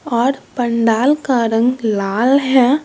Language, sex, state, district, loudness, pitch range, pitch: Hindi, male, Bihar, West Champaran, -15 LUFS, 230-270 Hz, 245 Hz